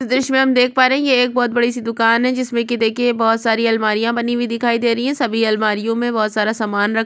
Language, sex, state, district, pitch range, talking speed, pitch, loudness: Hindi, female, Chhattisgarh, Kabirdham, 225-245 Hz, 280 wpm, 235 Hz, -16 LUFS